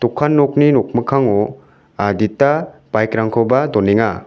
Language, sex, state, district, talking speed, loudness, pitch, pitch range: Garo, male, Meghalaya, South Garo Hills, 100 wpm, -15 LUFS, 120 Hz, 110-145 Hz